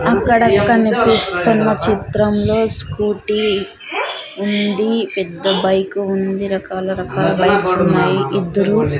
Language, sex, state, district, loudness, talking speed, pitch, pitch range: Telugu, female, Andhra Pradesh, Sri Satya Sai, -16 LUFS, 95 wpm, 200 Hz, 190-215 Hz